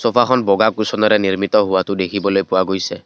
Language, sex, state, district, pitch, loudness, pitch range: Assamese, male, Assam, Kamrup Metropolitan, 100 Hz, -16 LUFS, 95-110 Hz